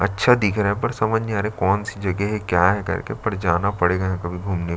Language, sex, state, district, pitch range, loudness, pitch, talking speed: Hindi, male, Chhattisgarh, Sukma, 90-105 Hz, -21 LUFS, 100 Hz, 275 wpm